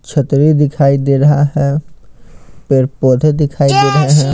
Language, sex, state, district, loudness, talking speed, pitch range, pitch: Hindi, male, Bihar, Patna, -12 LUFS, 150 wpm, 140-150 Hz, 140 Hz